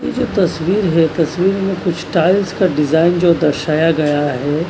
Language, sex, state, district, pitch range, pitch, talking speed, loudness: Hindi, male, Punjab, Kapurthala, 155-185 Hz, 165 Hz, 180 wpm, -15 LUFS